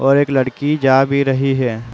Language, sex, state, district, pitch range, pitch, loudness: Hindi, male, Uttar Pradesh, Muzaffarnagar, 130-140 Hz, 135 Hz, -15 LUFS